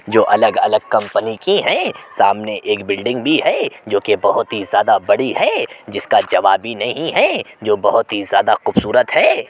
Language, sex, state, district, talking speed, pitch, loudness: Hindi, male, Uttar Pradesh, Jyotiba Phule Nagar, 175 wpm, 320 Hz, -16 LUFS